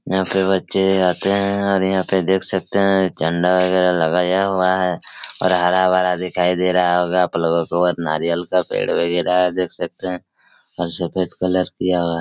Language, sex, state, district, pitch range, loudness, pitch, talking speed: Hindi, male, Chhattisgarh, Raigarh, 90-95 Hz, -18 LUFS, 90 Hz, 185 wpm